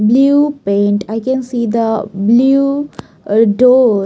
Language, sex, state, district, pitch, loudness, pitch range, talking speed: English, female, Maharashtra, Mumbai Suburban, 230 Hz, -13 LUFS, 210-265 Hz, 130 wpm